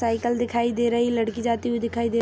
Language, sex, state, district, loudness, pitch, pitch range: Hindi, female, Jharkhand, Sahebganj, -24 LUFS, 235 Hz, 230-240 Hz